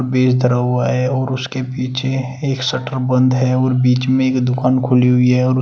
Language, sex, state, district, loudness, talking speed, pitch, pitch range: Hindi, male, Uttar Pradesh, Shamli, -16 LUFS, 225 wpm, 130 Hz, 125-130 Hz